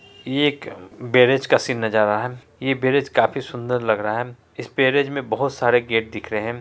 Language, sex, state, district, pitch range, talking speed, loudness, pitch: Hindi, female, Bihar, Araria, 110-135 Hz, 220 wpm, -20 LUFS, 125 Hz